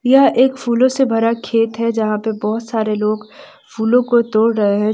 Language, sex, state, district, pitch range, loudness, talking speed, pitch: Hindi, female, Bihar, East Champaran, 215-245 Hz, -16 LUFS, 205 wpm, 225 Hz